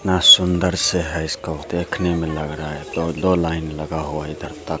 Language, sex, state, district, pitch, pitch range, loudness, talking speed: Hindi, male, Bihar, Begusarai, 80 Hz, 75-90 Hz, -19 LUFS, 210 wpm